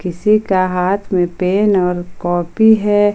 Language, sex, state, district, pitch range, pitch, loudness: Hindi, female, Jharkhand, Ranchi, 180-205 Hz, 185 Hz, -15 LUFS